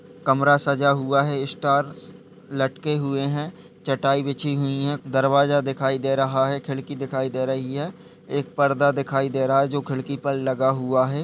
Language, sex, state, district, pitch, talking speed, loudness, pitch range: Hindi, male, Uttar Pradesh, Jalaun, 140 Hz, 180 wpm, -22 LUFS, 135-140 Hz